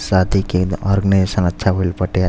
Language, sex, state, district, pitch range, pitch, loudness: Bhojpuri, male, Uttar Pradesh, Deoria, 90-100 Hz, 95 Hz, -17 LUFS